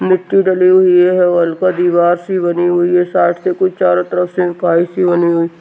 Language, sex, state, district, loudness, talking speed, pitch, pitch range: Hindi, male, Uttar Pradesh, Hamirpur, -13 LUFS, 225 wpm, 180 Hz, 175-185 Hz